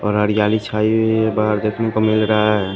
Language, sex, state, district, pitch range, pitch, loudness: Hindi, male, Punjab, Pathankot, 105-110 Hz, 110 Hz, -17 LUFS